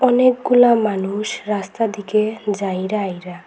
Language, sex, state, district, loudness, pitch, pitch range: Bengali, female, Assam, Hailakandi, -18 LUFS, 210 Hz, 195-230 Hz